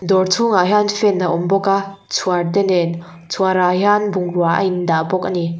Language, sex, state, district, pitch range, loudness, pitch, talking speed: Mizo, female, Mizoram, Aizawl, 175-195 Hz, -17 LUFS, 185 Hz, 205 wpm